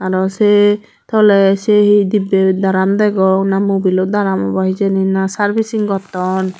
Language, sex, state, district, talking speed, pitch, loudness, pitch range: Chakma, female, Tripura, Dhalai, 155 wpm, 195 Hz, -14 LUFS, 190-205 Hz